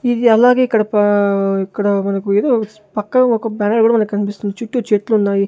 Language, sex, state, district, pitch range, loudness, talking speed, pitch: Telugu, male, Andhra Pradesh, Sri Satya Sai, 205-230 Hz, -15 LUFS, 165 wpm, 210 Hz